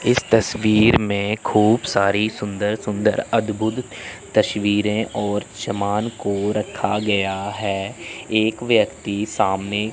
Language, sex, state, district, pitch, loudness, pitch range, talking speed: Hindi, male, Chandigarh, Chandigarh, 105 Hz, -20 LUFS, 100-110 Hz, 110 wpm